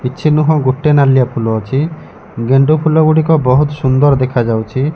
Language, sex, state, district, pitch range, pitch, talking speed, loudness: Odia, male, Odisha, Malkangiri, 130-155 Hz, 135 Hz, 145 wpm, -12 LUFS